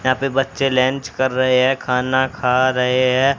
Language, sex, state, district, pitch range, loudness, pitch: Hindi, male, Haryana, Charkhi Dadri, 130-135 Hz, -17 LUFS, 130 Hz